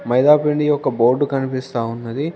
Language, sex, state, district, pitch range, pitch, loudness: Telugu, male, Telangana, Komaram Bheem, 120-150 Hz, 135 Hz, -18 LUFS